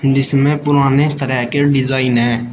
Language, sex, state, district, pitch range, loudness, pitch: Hindi, male, Uttar Pradesh, Shamli, 130-145 Hz, -14 LUFS, 135 Hz